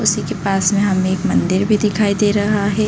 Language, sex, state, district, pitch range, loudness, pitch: Hindi, female, Chhattisgarh, Bilaspur, 195-210 Hz, -16 LUFS, 205 Hz